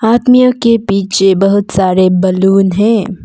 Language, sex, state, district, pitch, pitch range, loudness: Hindi, female, Arunachal Pradesh, Papum Pare, 195 Hz, 190-225 Hz, -10 LUFS